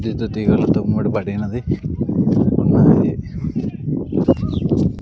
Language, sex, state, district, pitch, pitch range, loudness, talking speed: Telugu, male, Andhra Pradesh, Sri Satya Sai, 105 Hz, 105-110 Hz, -18 LUFS, 60 wpm